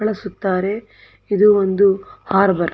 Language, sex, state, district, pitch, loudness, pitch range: Kannada, female, Karnataka, Dakshina Kannada, 200 Hz, -17 LUFS, 190-210 Hz